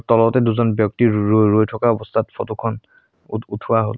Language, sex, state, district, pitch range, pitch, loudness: Assamese, male, Assam, Sonitpur, 110-115 Hz, 110 Hz, -18 LUFS